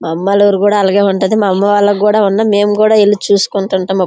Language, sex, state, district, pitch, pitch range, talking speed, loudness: Telugu, female, Andhra Pradesh, Srikakulam, 200 Hz, 195-205 Hz, 265 wpm, -11 LUFS